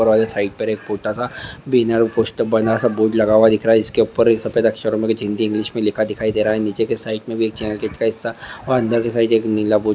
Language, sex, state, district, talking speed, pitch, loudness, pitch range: Hindi, male, Bihar, Madhepura, 260 wpm, 110 Hz, -18 LUFS, 110-115 Hz